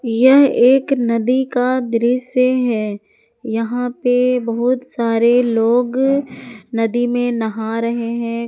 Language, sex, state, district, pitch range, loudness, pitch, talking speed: Hindi, female, Jharkhand, Ranchi, 230-255 Hz, -16 LUFS, 245 Hz, 115 wpm